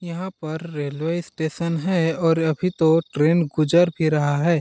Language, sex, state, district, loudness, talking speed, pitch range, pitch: Hindi, male, Chhattisgarh, Balrampur, -21 LUFS, 170 wpm, 155-170 Hz, 165 Hz